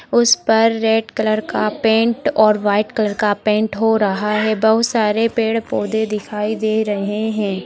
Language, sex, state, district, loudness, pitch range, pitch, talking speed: Hindi, female, Maharashtra, Sindhudurg, -17 LUFS, 210-225 Hz, 220 Hz, 165 wpm